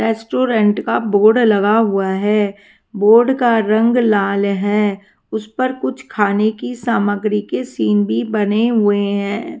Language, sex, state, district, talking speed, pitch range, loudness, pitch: Hindi, female, Haryana, Rohtak, 145 wpm, 200-225 Hz, -16 LUFS, 210 Hz